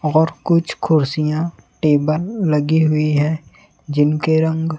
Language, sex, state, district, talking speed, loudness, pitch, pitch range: Hindi, male, Chhattisgarh, Raipur, 115 wpm, -18 LUFS, 155 Hz, 150-160 Hz